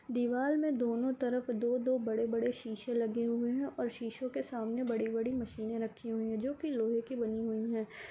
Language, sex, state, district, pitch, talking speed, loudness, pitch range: Hindi, female, Bihar, Gopalganj, 235 Hz, 190 wpm, -35 LUFS, 225-250 Hz